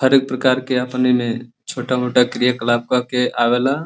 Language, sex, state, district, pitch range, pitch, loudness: Bhojpuri, male, Uttar Pradesh, Deoria, 125-130 Hz, 125 Hz, -18 LUFS